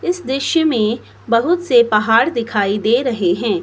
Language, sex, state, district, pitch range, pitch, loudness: Hindi, female, Himachal Pradesh, Shimla, 215-280 Hz, 235 Hz, -16 LUFS